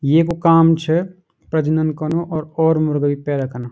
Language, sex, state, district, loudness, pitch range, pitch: Garhwali, male, Uttarakhand, Uttarkashi, -17 LUFS, 145-165 Hz, 155 Hz